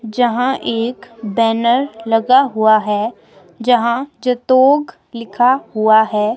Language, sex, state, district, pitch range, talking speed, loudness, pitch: Hindi, female, Himachal Pradesh, Shimla, 220-250 Hz, 105 wpm, -15 LUFS, 235 Hz